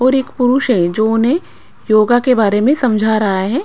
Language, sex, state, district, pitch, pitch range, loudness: Hindi, female, Bihar, Patna, 235 Hz, 215-260 Hz, -14 LUFS